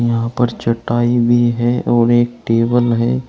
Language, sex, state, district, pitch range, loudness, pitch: Hindi, male, Uttar Pradesh, Saharanpur, 115-120 Hz, -15 LUFS, 120 Hz